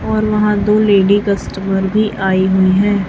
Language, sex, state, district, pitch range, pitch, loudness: Hindi, female, Chhattisgarh, Raipur, 190-210 Hz, 200 Hz, -14 LUFS